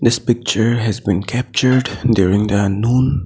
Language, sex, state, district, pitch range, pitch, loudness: English, male, Assam, Sonitpur, 100-125 Hz, 115 Hz, -16 LUFS